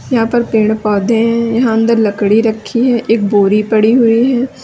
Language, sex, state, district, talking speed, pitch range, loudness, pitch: Hindi, female, Uttar Pradesh, Lalitpur, 195 wpm, 215-235 Hz, -12 LUFS, 225 Hz